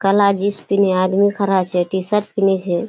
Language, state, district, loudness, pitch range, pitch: Surjapuri, Bihar, Kishanganj, -17 LUFS, 190-200 Hz, 195 Hz